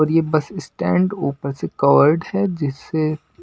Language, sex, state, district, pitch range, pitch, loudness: Hindi, male, Maharashtra, Washim, 140-160 Hz, 155 Hz, -19 LUFS